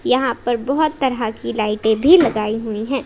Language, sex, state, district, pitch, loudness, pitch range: Hindi, female, Jharkhand, Palamu, 235 Hz, -18 LUFS, 220-270 Hz